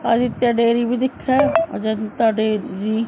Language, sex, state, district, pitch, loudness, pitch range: Hindi, female, Haryana, Jhajjar, 235 Hz, -19 LUFS, 220-245 Hz